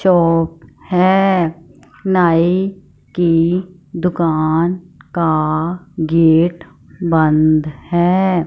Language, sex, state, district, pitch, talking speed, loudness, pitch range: Hindi, female, Punjab, Fazilka, 170 Hz, 65 wpm, -15 LUFS, 160-180 Hz